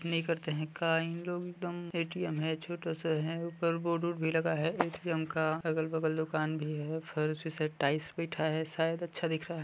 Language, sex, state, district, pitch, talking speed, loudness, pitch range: Hindi, male, Chhattisgarh, Balrampur, 160 Hz, 225 wpm, -34 LUFS, 155-170 Hz